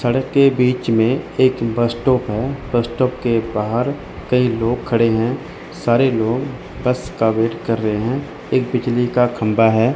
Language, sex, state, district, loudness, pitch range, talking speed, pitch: Hindi, male, Chandigarh, Chandigarh, -18 LUFS, 115-130 Hz, 175 wpm, 120 Hz